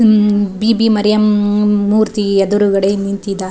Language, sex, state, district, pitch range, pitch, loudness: Kannada, female, Karnataka, Raichur, 200-210 Hz, 205 Hz, -13 LUFS